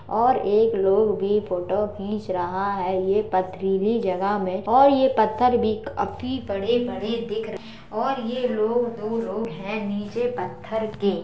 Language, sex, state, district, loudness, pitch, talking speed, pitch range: Hindi, male, Uttar Pradesh, Jalaun, -23 LUFS, 210 Hz, 155 wpm, 195-230 Hz